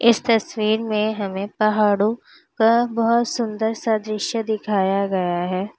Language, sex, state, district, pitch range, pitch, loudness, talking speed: Hindi, female, Uttar Pradesh, Lalitpur, 200-230 Hz, 215 Hz, -20 LUFS, 135 wpm